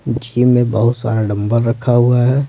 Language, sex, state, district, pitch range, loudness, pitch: Hindi, male, Bihar, Patna, 115-125 Hz, -15 LUFS, 120 Hz